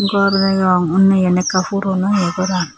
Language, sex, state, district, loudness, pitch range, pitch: Chakma, female, Tripura, Unakoti, -15 LUFS, 185-195 Hz, 190 Hz